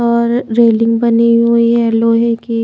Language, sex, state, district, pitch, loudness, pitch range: Hindi, female, Maharashtra, Washim, 235 Hz, -12 LUFS, 230-235 Hz